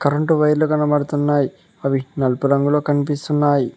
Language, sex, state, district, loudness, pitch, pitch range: Telugu, male, Telangana, Mahabubabad, -18 LUFS, 145 Hz, 140-150 Hz